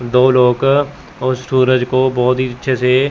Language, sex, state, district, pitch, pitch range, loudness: Hindi, male, Chandigarh, Chandigarh, 130 Hz, 125-130 Hz, -14 LUFS